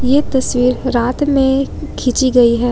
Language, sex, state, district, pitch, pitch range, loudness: Hindi, female, Jharkhand, Ranchi, 255 Hz, 245-270 Hz, -14 LUFS